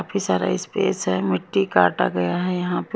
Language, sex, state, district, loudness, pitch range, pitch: Hindi, female, Haryana, Jhajjar, -21 LUFS, 90-95 Hz, 95 Hz